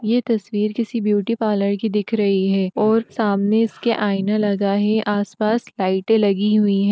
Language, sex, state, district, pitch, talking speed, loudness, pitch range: Hindi, female, Uttar Pradesh, Etah, 210 Hz, 165 wpm, -19 LUFS, 200-220 Hz